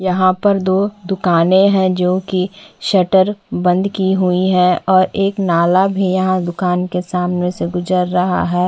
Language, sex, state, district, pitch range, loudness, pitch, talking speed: Hindi, female, Chhattisgarh, Bastar, 180-190 Hz, -15 LUFS, 185 Hz, 165 wpm